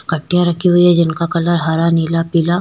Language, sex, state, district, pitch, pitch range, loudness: Hindi, female, Chhattisgarh, Korba, 170 Hz, 165-175 Hz, -14 LUFS